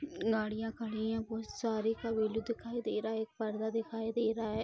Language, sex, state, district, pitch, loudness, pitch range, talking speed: Hindi, female, Bihar, Vaishali, 225 Hz, -36 LUFS, 220-225 Hz, 195 wpm